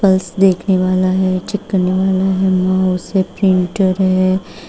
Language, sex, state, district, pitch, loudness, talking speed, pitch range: Hindi, female, Uttar Pradesh, Shamli, 185 Hz, -15 LUFS, 155 wpm, 185-190 Hz